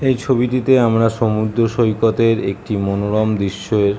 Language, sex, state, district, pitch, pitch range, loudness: Bengali, male, West Bengal, Kolkata, 115 Hz, 105-115 Hz, -17 LUFS